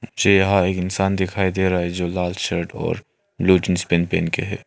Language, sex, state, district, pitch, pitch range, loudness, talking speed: Hindi, male, Arunachal Pradesh, Longding, 95 Hz, 90-95 Hz, -20 LUFS, 230 wpm